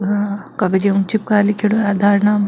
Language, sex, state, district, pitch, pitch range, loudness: Marwari, female, Rajasthan, Nagaur, 205 Hz, 200-210 Hz, -16 LUFS